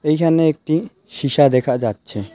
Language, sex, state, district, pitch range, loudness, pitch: Bengali, male, West Bengal, Alipurduar, 125-160 Hz, -17 LUFS, 145 Hz